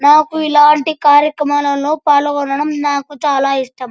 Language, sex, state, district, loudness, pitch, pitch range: Telugu, male, Andhra Pradesh, Anantapur, -13 LUFS, 290 Hz, 285-300 Hz